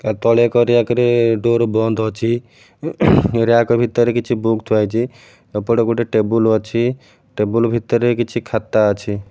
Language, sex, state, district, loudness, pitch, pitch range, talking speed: Odia, male, Odisha, Malkangiri, -16 LUFS, 115 Hz, 110-120 Hz, 140 wpm